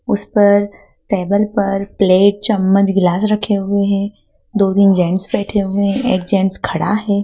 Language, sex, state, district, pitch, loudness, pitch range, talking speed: Hindi, female, Madhya Pradesh, Dhar, 200 Hz, -15 LUFS, 195-205 Hz, 155 wpm